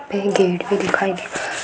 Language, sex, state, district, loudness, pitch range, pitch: Hindi, female, Uttar Pradesh, Hamirpur, -20 LUFS, 190-200 Hz, 195 Hz